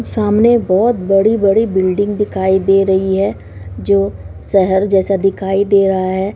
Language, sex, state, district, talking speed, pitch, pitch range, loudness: Maithili, female, Bihar, Supaul, 140 wpm, 195 Hz, 190-200 Hz, -14 LUFS